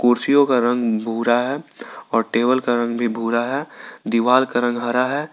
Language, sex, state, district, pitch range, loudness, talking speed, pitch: Hindi, male, Jharkhand, Garhwa, 120-130 Hz, -19 LUFS, 190 wpm, 120 Hz